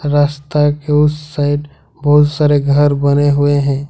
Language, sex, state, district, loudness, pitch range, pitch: Hindi, male, Jharkhand, Ranchi, -13 LUFS, 145-150 Hz, 145 Hz